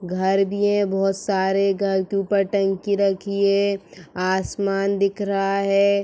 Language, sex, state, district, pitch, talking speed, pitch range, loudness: Hindi, female, Uttar Pradesh, Etah, 195 Hz, 150 wpm, 195-200 Hz, -21 LUFS